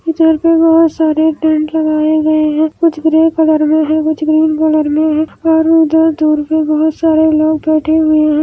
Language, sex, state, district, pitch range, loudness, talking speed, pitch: Hindi, female, Andhra Pradesh, Anantapur, 310-320 Hz, -11 LUFS, 45 wpm, 315 Hz